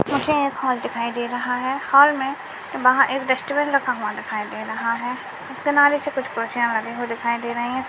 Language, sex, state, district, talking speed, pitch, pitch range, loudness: Hindi, male, Maharashtra, Nagpur, 205 wpm, 255 Hz, 240-275 Hz, -21 LUFS